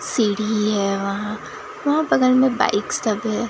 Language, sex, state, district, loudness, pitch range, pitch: Hindi, female, Bihar, Katihar, -20 LUFS, 210-290 Hz, 220 Hz